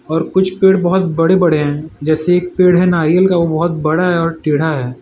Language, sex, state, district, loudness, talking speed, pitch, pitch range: Hindi, male, Gujarat, Valsad, -13 LUFS, 240 wpm, 170 Hz, 155-180 Hz